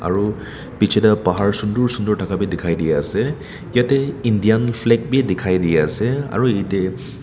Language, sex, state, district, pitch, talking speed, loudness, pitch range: Nagamese, male, Nagaland, Kohima, 105 Hz, 165 wpm, -18 LUFS, 95-125 Hz